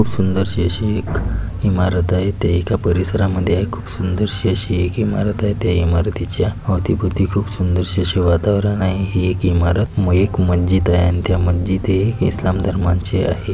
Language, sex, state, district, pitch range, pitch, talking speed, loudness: Marathi, male, Maharashtra, Pune, 90-100 Hz, 95 Hz, 155 wpm, -18 LUFS